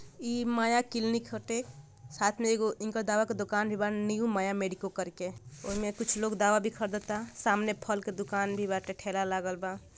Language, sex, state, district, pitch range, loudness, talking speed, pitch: Bhojpuri, female, Bihar, Gopalganj, 195-220 Hz, -32 LUFS, 200 wpm, 210 Hz